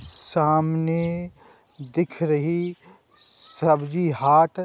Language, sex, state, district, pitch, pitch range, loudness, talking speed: Hindi, male, Uttar Pradesh, Budaun, 160 Hz, 155-170 Hz, -23 LUFS, 75 wpm